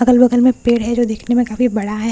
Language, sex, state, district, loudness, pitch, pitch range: Hindi, female, Bihar, Katihar, -15 LUFS, 240 Hz, 225-250 Hz